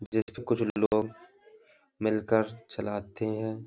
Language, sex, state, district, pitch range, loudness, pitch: Hindi, male, Uttar Pradesh, Hamirpur, 110-115 Hz, -30 LUFS, 110 Hz